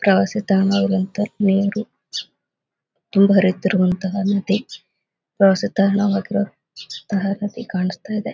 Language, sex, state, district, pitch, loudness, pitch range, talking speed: Kannada, female, Karnataka, Gulbarga, 195 Hz, -19 LUFS, 190-205 Hz, 95 wpm